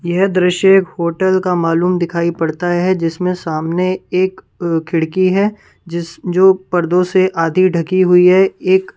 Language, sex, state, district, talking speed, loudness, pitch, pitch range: Hindi, female, Punjab, Kapurthala, 155 wpm, -14 LUFS, 180 Hz, 170-185 Hz